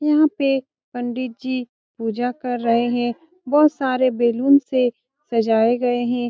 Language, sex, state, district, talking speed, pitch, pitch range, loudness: Hindi, female, Bihar, Saran, 145 wpm, 250 Hz, 240-270 Hz, -20 LUFS